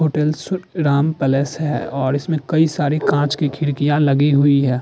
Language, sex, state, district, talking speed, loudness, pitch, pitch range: Hindi, male, Uttar Pradesh, Jalaun, 175 wpm, -18 LUFS, 145 Hz, 140-155 Hz